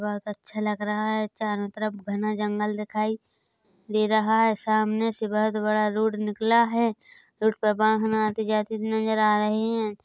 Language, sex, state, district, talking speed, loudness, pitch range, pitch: Hindi, female, Chhattisgarh, Bilaspur, 165 wpm, -25 LUFS, 210-220 Hz, 215 Hz